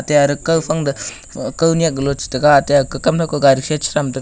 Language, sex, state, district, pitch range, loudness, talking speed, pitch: Wancho, male, Arunachal Pradesh, Longding, 135-155 Hz, -16 LUFS, 200 wpm, 145 Hz